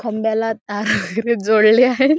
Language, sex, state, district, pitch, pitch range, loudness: Marathi, female, Maharashtra, Chandrapur, 220 Hz, 215-235 Hz, -17 LUFS